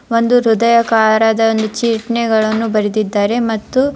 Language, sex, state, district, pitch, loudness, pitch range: Kannada, female, Karnataka, Dharwad, 225 Hz, -14 LUFS, 220-235 Hz